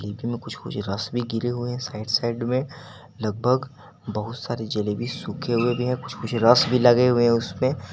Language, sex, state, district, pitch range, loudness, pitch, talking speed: Hindi, male, Jharkhand, Garhwa, 110-125 Hz, -23 LUFS, 120 Hz, 205 wpm